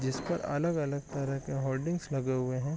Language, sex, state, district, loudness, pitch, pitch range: Hindi, male, Chhattisgarh, Raigarh, -33 LUFS, 135 Hz, 130-150 Hz